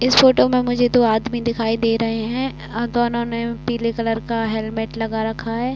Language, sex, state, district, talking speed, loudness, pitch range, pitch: Hindi, female, Uttar Pradesh, Varanasi, 200 wpm, -20 LUFS, 225-240 Hz, 230 Hz